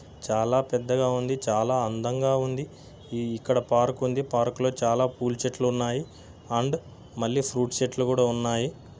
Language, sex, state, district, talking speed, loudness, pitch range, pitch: Telugu, male, Andhra Pradesh, Anantapur, 135 wpm, -26 LUFS, 120-130 Hz, 125 Hz